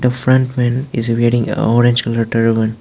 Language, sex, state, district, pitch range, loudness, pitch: English, male, Arunachal Pradesh, Lower Dibang Valley, 115-125 Hz, -15 LUFS, 120 Hz